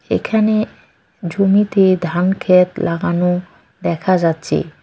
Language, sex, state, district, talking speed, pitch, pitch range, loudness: Bengali, female, West Bengal, Cooch Behar, 85 wpm, 180 Hz, 170-195 Hz, -16 LUFS